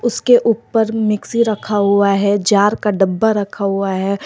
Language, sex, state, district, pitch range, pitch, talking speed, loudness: Hindi, female, Jharkhand, Garhwa, 200-220 Hz, 210 Hz, 170 wpm, -15 LUFS